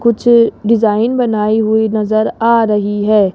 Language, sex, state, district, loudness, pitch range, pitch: Hindi, female, Rajasthan, Jaipur, -13 LUFS, 210-230 Hz, 220 Hz